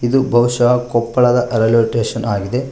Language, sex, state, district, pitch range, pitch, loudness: Kannada, male, Karnataka, Koppal, 115-125 Hz, 120 Hz, -15 LUFS